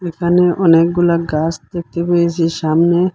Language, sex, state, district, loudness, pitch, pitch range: Bengali, male, Assam, Hailakandi, -14 LUFS, 170 Hz, 165-175 Hz